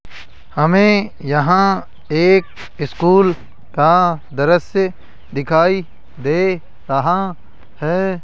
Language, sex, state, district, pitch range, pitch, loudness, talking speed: Hindi, male, Rajasthan, Jaipur, 145-185 Hz, 170 Hz, -16 LUFS, 75 wpm